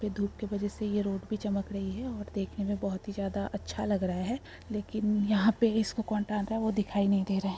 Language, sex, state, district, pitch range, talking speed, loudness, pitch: Hindi, female, Bihar, Jamui, 200-215 Hz, 255 wpm, -31 LUFS, 205 Hz